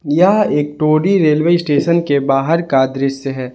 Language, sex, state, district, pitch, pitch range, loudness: Hindi, male, Jharkhand, Palamu, 150 Hz, 135-170 Hz, -14 LUFS